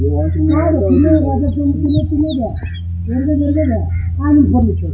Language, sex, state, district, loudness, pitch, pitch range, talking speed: Telugu, male, Andhra Pradesh, Sri Satya Sai, -15 LUFS, 85 Hz, 85-95 Hz, 60 wpm